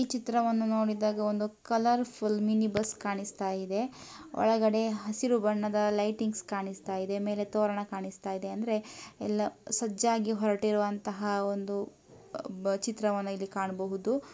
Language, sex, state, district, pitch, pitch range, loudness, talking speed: Kannada, female, Karnataka, Mysore, 210 Hz, 200-220 Hz, -31 LUFS, 115 wpm